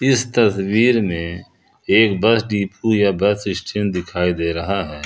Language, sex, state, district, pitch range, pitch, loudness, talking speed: Hindi, male, Jharkhand, Ranchi, 90-110 Hz, 100 Hz, -18 LUFS, 155 wpm